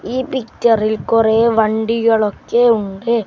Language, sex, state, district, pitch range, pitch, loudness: Malayalam, male, Kerala, Kasaragod, 220-235 Hz, 230 Hz, -15 LUFS